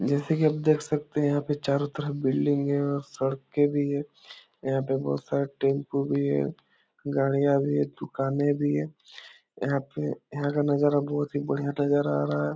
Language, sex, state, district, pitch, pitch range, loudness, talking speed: Hindi, male, Bihar, Jahanabad, 140 Hz, 135-145 Hz, -27 LUFS, 195 wpm